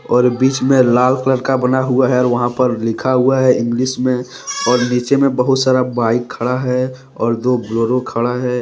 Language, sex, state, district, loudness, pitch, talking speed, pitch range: Hindi, male, Jharkhand, Deoghar, -15 LUFS, 125 Hz, 215 wpm, 125-130 Hz